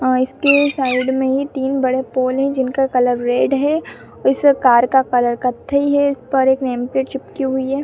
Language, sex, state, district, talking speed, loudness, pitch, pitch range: Hindi, female, Bihar, Purnia, 200 wpm, -16 LUFS, 265 Hz, 255-275 Hz